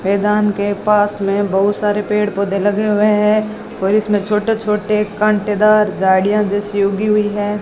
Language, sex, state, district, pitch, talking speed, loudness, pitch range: Hindi, female, Rajasthan, Bikaner, 210 Hz, 150 wpm, -15 LUFS, 205-210 Hz